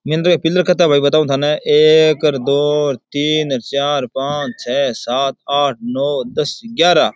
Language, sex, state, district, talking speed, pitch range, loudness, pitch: Rajasthani, male, Rajasthan, Churu, 145 wpm, 140-155 Hz, -15 LUFS, 145 Hz